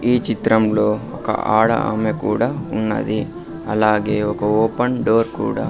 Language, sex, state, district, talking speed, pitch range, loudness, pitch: Telugu, male, Andhra Pradesh, Sri Satya Sai, 125 wpm, 105-115 Hz, -19 LUFS, 110 Hz